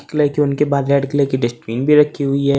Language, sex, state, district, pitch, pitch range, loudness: Hindi, male, Uttar Pradesh, Saharanpur, 140 Hz, 140-145 Hz, -16 LUFS